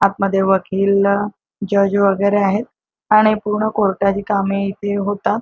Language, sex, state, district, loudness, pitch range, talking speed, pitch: Marathi, female, Maharashtra, Chandrapur, -17 LUFS, 195-205 Hz, 135 wpm, 200 Hz